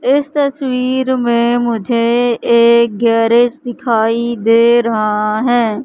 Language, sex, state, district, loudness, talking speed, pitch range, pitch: Hindi, female, Madhya Pradesh, Katni, -13 LUFS, 100 wpm, 230-245 Hz, 235 Hz